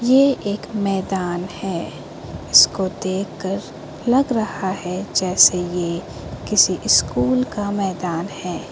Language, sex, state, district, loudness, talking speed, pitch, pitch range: Hindi, female, Uttar Pradesh, Lucknow, -19 LUFS, 110 wpm, 190 Hz, 175-205 Hz